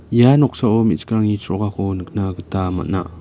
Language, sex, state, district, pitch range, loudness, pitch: Garo, male, Meghalaya, West Garo Hills, 95-110 Hz, -18 LUFS, 100 Hz